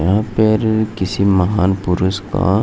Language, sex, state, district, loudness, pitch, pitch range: Hindi, male, Maharashtra, Aurangabad, -16 LUFS, 100 Hz, 95-110 Hz